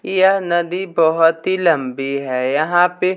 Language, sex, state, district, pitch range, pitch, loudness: Hindi, male, Bihar, West Champaran, 155-185 Hz, 175 Hz, -17 LUFS